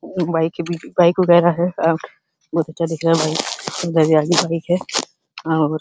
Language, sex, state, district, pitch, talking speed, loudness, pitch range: Hindi, male, Uttar Pradesh, Hamirpur, 165 Hz, 175 wpm, -18 LUFS, 160-175 Hz